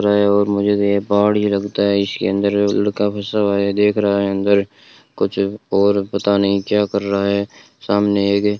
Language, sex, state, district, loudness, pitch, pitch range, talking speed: Hindi, male, Rajasthan, Bikaner, -17 LUFS, 100 Hz, 100-105 Hz, 195 wpm